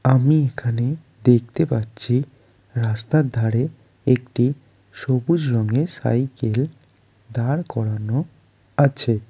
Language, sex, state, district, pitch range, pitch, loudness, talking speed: Bengali, male, West Bengal, Jalpaiguri, 115-140 Hz, 125 Hz, -21 LUFS, 85 wpm